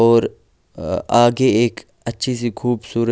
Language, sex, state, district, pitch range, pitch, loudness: Hindi, male, Delhi, New Delhi, 115-120 Hz, 120 Hz, -18 LUFS